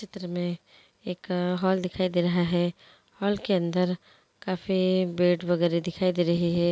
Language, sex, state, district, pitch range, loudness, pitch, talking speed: Hindi, female, Andhra Pradesh, Guntur, 175-185 Hz, -27 LUFS, 180 Hz, 160 wpm